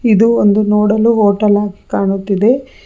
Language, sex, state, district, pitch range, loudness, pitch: Kannada, female, Karnataka, Bangalore, 205-230 Hz, -12 LUFS, 210 Hz